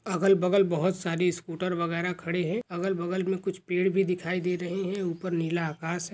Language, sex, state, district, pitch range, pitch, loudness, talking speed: Hindi, male, Rajasthan, Churu, 170-190 Hz, 180 Hz, -28 LUFS, 215 wpm